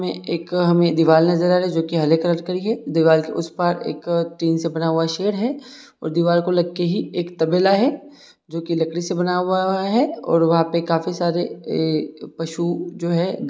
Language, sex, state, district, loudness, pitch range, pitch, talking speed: Hindi, male, Chhattisgarh, Bilaspur, -20 LUFS, 165-180 Hz, 170 Hz, 220 wpm